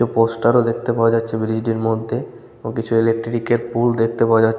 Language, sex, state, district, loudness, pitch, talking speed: Bengali, male, West Bengal, Malda, -19 LUFS, 115 Hz, 225 wpm